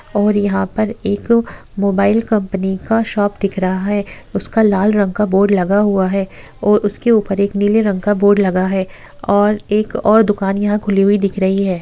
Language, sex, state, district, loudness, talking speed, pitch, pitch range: Hindi, female, Bihar, Sitamarhi, -15 LUFS, 205 wpm, 205 Hz, 195-210 Hz